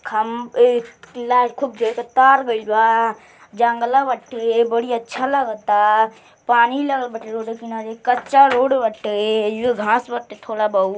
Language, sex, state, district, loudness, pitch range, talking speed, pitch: Bhojpuri, male, Uttar Pradesh, Gorakhpur, -18 LUFS, 220-245 Hz, 160 wpm, 235 Hz